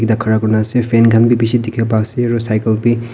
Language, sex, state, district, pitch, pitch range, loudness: Nagamese, male, Nagaland, Kohima, 115 Hz, 110-120 Hz, -14 LUFS